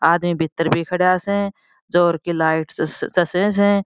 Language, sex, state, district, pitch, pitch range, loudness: Marwari, female, Rajasthan, Churu, 175 Hz, 165-200 Hz, -19 LUFS